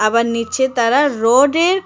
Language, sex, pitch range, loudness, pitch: Bengali, female, 230-285 Hz, -15 LUFS, 250 Hz